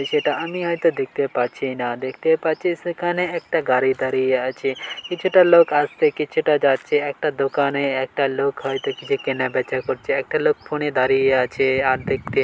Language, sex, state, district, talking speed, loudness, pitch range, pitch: Bengali, male, West Bengal, Dakshin Dinajpur, 165 wpm, -20 LUFS, 135-175 Hz, 145 Hz